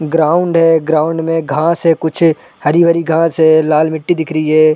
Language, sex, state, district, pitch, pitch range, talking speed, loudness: Hindi, male, Chhattisgarh, Raigarh, 160 Hz, 155-165 Hz, 200 wpm, -12 LUFS